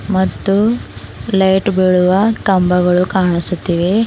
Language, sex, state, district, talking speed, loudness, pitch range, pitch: Kannada, female, Karnataka, Bidar, 75 wpm, -14 LUFS, 180-195 Hz, 190 Hz